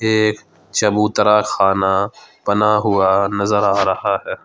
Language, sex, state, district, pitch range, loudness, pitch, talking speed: Hindi, male, Jharkhand, Ranchi, 100-105 Hz, -16 LUFS, 105 Hz, 120 wpm